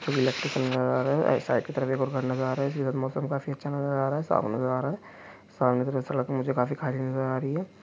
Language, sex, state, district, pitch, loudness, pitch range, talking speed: Hindi, male, Chhattisgarh, Korba, 130 Hz, -28 LUFS, 130-140 Hz, 315 wpm